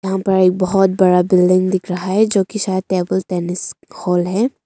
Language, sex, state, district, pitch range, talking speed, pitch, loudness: Hindi, female, Arunachal Pradesh, Longding, 180-190 Hz, 165 wpm, 185 Hz, -16 LUFS